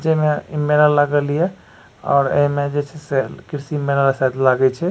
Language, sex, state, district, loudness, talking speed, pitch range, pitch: Maithili, male, Bihar, Supaul, -18 LUFS, 220 wpm, 140-150 Hz, 145 Hz